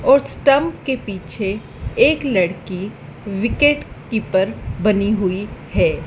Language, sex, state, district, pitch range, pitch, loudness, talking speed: Hindi, female, Madhya Pradesh, Dhar, 190-265 Hz, 210 Hz, -19 LUFS, 110 wpm